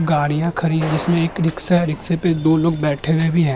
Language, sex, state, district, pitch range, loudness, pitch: Hindi, male, Uttar Pradesh, Muzaffarnagar, 160-170 Hz, -17 LUFS, 165 Hz